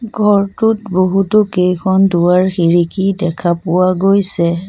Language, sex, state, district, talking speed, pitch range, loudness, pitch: Assamese, female, Assam, Sonitpur, 100 wpm, 175-195 Hz, -13 LUFS, 185 Hz